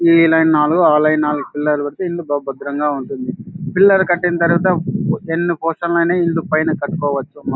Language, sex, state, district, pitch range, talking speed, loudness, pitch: Telugu, male, Andhra Pradesh, Anantapur, 150-175 Hz, 175 wpm, -16 LUFS, 165 Hz